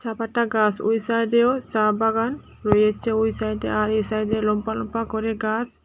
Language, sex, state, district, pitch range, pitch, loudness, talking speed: Bengali, female, Tripura, Dhalai, 215-230 Hz, 220 Hz, -22 LUFS, 165 wpm